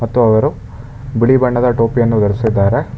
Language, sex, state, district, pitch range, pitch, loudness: Kannada, male, Karnataka, Bangalore, 110-125 Hz, 115 Hz, -14 LUFS